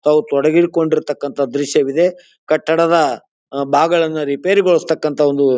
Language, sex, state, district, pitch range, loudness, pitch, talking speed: Kannada, male, Karnataka, Bijapur, 145-170 Hz, -16 LUFS, 155 Hz, 75 wpm